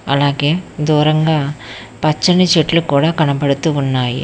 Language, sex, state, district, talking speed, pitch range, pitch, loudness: Telugu, female, Telangana, Hyderabad, 100 wpm, 140-160 Hz, 150 Hz, -15 LUFS